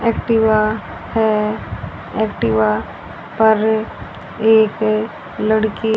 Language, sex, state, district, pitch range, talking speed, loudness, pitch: Hindi, female, Haryana, Rohtak, 215-220 Hz, 60 wpm, -17 LUFS, 220 Hz